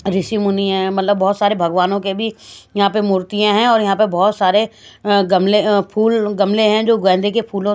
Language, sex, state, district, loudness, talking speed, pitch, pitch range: Hindi, female, Maharashtra, Washim, -15 LUFS, 210 wpm, 205 Hz, 195-215 Hz